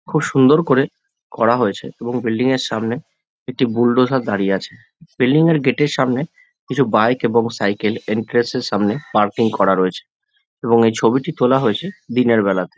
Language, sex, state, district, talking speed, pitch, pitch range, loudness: Bengali, male, West Bengal, Jhargram, 165 wpm, 125 Hz, 110-135 Hz, -17 LUFS